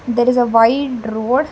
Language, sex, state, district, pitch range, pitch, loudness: English, female, Karnataka, Bangalore, 230-255 Hz, 245 Hz, -15 LUFS